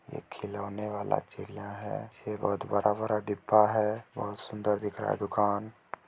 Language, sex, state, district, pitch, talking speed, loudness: Hindi, male, Bihar, Gopalganj, 105 Hz, 160 wpm, -31 LUFS